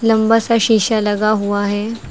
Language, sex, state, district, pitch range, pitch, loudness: Hindi, female, Uttar Pradesh, Lucknow, 205-225 Hz, 220 Hz, -15 LUFS